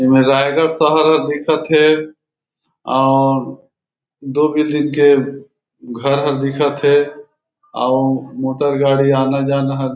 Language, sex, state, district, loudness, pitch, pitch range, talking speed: Chhattisgarhi, male, Chhattisgarh, Raigarh, -15 LUFS, 140 Hz, 135-150 Hz, 115 wpm